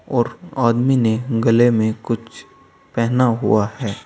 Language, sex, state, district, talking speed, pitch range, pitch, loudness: Hindi, male, Uttar Pradesh, Saharanpur, 135 wpm, 110-125 Hz, 115 Hz, -18 LUFS